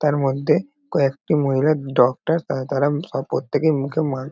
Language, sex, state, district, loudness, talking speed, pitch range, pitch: Bengali, male, West Bengal, North 24 Parganas, -21 LUFS, 155 wpm, 135-155 Hz, 145 Hz